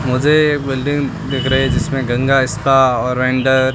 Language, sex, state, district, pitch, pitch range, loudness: Hindi, male, Rajasthan, Bikaner, 135 Hz, 130-135 Hz, -15 LUFS